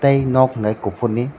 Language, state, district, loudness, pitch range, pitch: Kokborok, Tripura, Dhalai, -18 LUFS, 110-130 Hz, 120 Hz